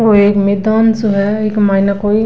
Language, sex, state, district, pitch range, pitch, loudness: Rajasthani, female, Rajasthan, Nagaur, 200-215 Hz, 210 Hz, -12 LUFS